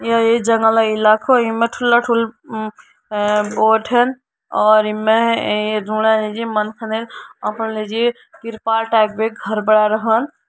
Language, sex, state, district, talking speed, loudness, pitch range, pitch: Hindi, female, Uttarakhand, Uttarkashi, 90 wpm, -17 LUFS, 215-230 Hz, 220 Hz